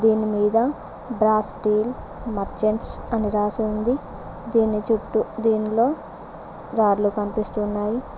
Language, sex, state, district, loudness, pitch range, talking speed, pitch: Telugu, female, Telangana, Mahabubabad, -20 LUFS, 210-225 Hz, 95 wpm, 215 Hz